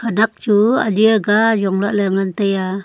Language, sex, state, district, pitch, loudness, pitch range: Wancho, female, Arunachal Pradesh, Longding, 205 Hz, -16 LUFS, 195-220 Hz